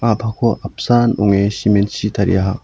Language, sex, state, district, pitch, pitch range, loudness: Garo, male, Meghalaya, South Garo Hills, 105 Hz, 100-115 Hz, -16 LUFS